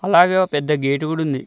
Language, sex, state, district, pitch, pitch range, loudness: Telugu, male, Telangana, Mahabubabad, 155 Hz, 145-180 Hz, -18 LUFS